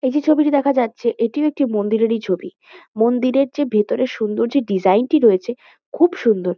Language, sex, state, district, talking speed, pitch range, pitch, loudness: Bengali, female, West Bengal, Kolkata, 175 wpm, 220-280 Hz, 235 Hz, -18 LUFS